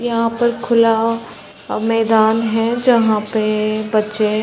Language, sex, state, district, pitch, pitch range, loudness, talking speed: Hindi, female, Chhattisgarh, Bilaspur, 225 Hz, 215-230 Hz, -16 LUFS, 135 wpm